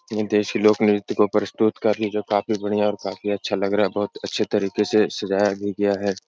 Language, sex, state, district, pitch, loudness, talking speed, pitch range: Hindi, male, Uttar Pradesh, Etah, 105 Hz, -22 LUFS, 240 wpm, 100-105 Hz